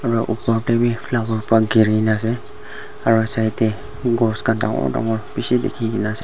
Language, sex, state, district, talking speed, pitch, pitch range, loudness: Nagamese, male, Nagaland, Dimapur, 175 wpm, 115 Hz, 110-115 Hz, -19 LUFS